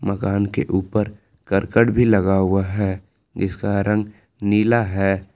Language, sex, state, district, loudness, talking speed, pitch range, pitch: Hindi, male, Jharkhand, Palamu, -20 LUFS, 135 wpm, 95-105 Hz, 100 Hz